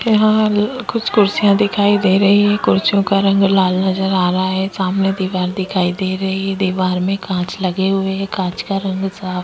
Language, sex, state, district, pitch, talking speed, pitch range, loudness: Hindi, female, Bihar, Vaishali, 195 Hz, 210 wpm, 185-200 Hz, -16 LUFS